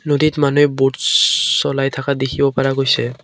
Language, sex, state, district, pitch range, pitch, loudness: Assamese, male, Assam, Kamrup Metropolitan, 135-145 Hz, 140 Hz, -15 LUFS